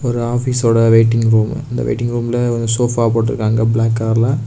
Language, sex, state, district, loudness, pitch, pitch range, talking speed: Tamil, male, Tamil Nadu, Kanyakumari, -15 LUFS, 115 Hz, 115-120 Hz, 160 wpm